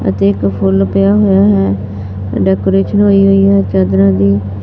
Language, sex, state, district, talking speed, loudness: Punjabi, female, Punjab, Fazilka, 140 wpm, -11 LUFS